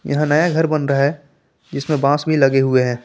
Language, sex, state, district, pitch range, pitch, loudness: Hindi, male, Jharkhand, Palamu, 135-155 Hz, 145 Hz, -17 LUFS